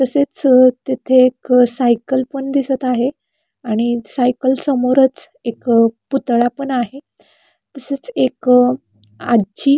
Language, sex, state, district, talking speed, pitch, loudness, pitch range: Marathi, female, Maharashtra, Pune, 125 wpm, 255 Hz, -16 LUFS, 240-270 Hz